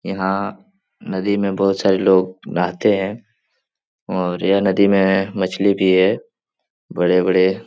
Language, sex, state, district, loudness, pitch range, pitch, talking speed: Hindi, male, Bihar, Jahanabad, -18 LUFS, 95-100 Hz, 95 Hz, 135 wpm